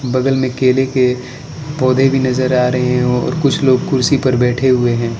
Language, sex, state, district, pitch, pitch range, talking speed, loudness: Hindi, male, Arunachal Pradesh, Lower Dibang Valley, 130 Hz, 125-130 Hz, 205 wpm, -14 LUFS